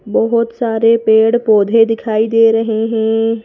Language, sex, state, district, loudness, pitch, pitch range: Hindi, female, Madhya Pradesh, Bhopal, -13 LUFS, 225 Hz, 220-230 Hz